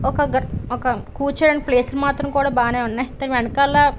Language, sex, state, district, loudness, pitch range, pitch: Telugu, female, Andhra Pradesh, Visakhapatnam, -20 LUFS, 250-280 Hz, 275 Hz